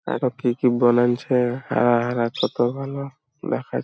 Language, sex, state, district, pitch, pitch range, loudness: Bengali, male, West Bengal, Purulia, 120 Hz, 120-135 Hz, -22 LUFS